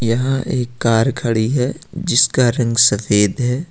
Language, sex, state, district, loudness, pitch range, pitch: Hindi, male, Jharkhand, Ranchi, -16 LUFS, 115-130 Hz, 120 Hz